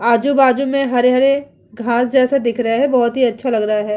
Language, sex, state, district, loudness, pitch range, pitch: Hindi, female, Bihar, Vaishali, -15 LUFS, 235-270 Hz, 250 Hz